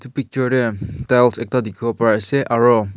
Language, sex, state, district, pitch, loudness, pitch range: Nagamese, male, Nagaland, Kohima, 120 Hz, -18 LUFS, 115-130 Hz